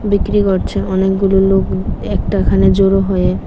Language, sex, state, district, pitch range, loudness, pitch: Bengali, female, Tripura, West Tripura, 185-195 Hz, -14 LUFS, 195 Hz